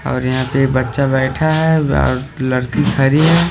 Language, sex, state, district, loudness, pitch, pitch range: Hindi, male, Haryana, Rohtak, -15 LUFS, 135 Hz, 130-155 Hz